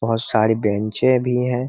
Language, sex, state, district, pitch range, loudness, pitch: Hindi, male, Bihar, Muzaffarpur, 110-125 Hz, -19 LUFS, 115 Hz